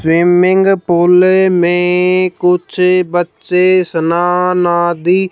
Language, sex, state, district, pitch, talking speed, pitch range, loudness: Hindi, female, Haryana, Jhajjar, 180 Hz, 80 wpm, 175-185 Hz, -11 LUFS